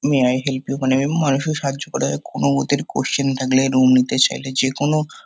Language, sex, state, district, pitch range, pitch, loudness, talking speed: Bengali, male, West Bengal, Kolkata, 130-140 Hz, 135 Hz, -19 LUFS, 195 wpm